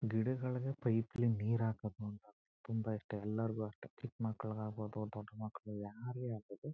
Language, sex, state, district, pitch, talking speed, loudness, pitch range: Kannada, male, Karnataka, Chamarajanagar, 110 Hz, 160 wpm, -41 LUFS, 105-115 Hz